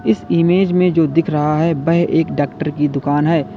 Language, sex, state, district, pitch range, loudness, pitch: Hindi, male, Uttar Pradesh, Lalitpur, 150-170 Hz, -16 LUFS, 160 Hz